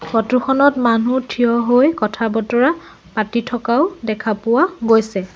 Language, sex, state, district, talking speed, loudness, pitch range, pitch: Assamese, female, Assam, Sonitpur, 125 wpm, -17 LUFS, 220-250 Hz, 235 Hz